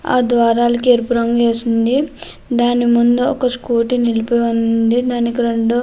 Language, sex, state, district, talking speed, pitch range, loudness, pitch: Telugu, female, Andhra Pradesh, Krishna, 155 wpm, 235-245 Hz, -15 LUFS, 240 Hz